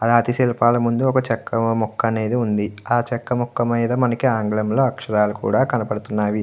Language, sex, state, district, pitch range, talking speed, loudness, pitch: Telugu, male, Andhra Pradesh, Guntur, 110-120 Hz, 170 wpm, -20 LUFS, 120 Hz